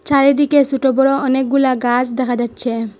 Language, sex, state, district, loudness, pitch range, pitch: Bengali, female, Assam, Hailakandi, -15 LUFS, 245-275 Hz, 265 Hz